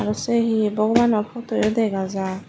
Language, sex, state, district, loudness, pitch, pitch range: Chakma, female, Tripura, Dhalai, -21 LUFS, 215 Hz, 195-230 Hz